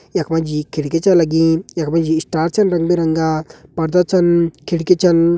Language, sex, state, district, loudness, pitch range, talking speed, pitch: Garhwali, male, Uttarakhand, Uttarkashi, -16 LUFS, 160-175 Hz, 165 wpm, 165 Hz